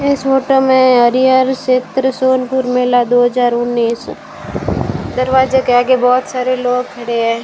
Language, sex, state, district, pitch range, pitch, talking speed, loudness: Hindi, female, Rajasthan, Bikaner, 245-260 Hz, 255 Hz, 145 wpm, -13 LUFS